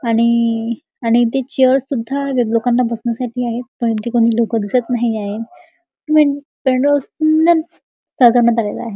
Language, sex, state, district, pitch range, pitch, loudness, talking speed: Marathi, male, Maharashtra, Chandrapur, 230-280 Hz, 245 Hz, -16 LUFS, 120 wpm